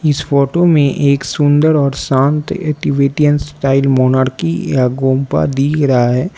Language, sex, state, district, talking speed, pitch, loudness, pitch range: Hindi, male, Arunachal Pradesh, Lower Dibang Valley, 150 wpm, 140 Hz, -13 LUFS, 135-150 Hz